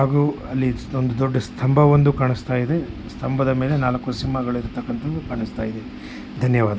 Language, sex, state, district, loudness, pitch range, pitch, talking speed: Kannada, male, Karnataka, Shimoga, -21 LUFS, 120-135 Hz, 130 Hz, 140 wpm